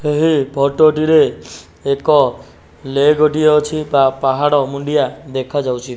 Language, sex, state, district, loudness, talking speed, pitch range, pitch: Odia, male, Odisha, Nuapada, -15 LUFS, 120 wpm, 135-150 Hz, 145 Hz